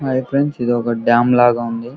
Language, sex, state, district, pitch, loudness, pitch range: Telugu, male, Andhra Pradesh, Krishna, 120 Hz, -16 LUFS, 120-130 Hz